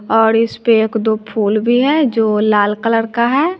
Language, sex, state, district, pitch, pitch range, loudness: Hindi, female, Bihar, West Champaran, 225 Hz, 215-235 Hz, -14 LUFS